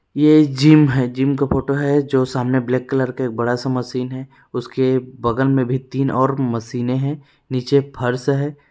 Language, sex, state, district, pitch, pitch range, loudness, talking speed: Hindi, male, Chhattisgarh, Rajnandgaon, 130 Hz, 125-140 Hz, -18 LUFS, 185 wpm